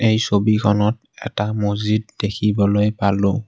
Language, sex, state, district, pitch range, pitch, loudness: Assamese, male, Assam, Kamrup Metropolitan, 105-110 Hz, 105 Hz, -19 LUFS